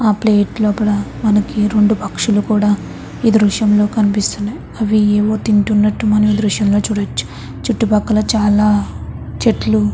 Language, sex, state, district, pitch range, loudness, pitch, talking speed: Telugu, female, Andhra Pradesh, Chittoor, 205-215 Hz, -15 LUFS, 210 Hz, 125 wpm